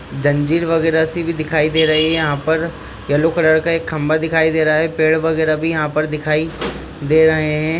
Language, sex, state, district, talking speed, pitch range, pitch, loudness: Hindi, male, Maharashtra, Pune, 210 wpm, 155-160 Hz, 160 Hz, -16 LUFS